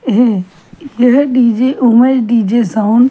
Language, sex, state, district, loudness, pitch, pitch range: Hindi, female, Chhattisgarh, Kabirdham, -11 LUFS, 235 Hz, 220-255 Hz